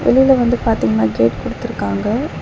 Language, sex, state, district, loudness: Tamil, female, Tamil Nadu, Chennai, -16 LUFS